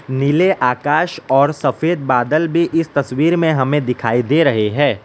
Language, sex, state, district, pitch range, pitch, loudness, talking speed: Hindi, male, Gujarat, Valsad, 130-160 Hz, 145 Hz, -16 LUFS, 165 wpm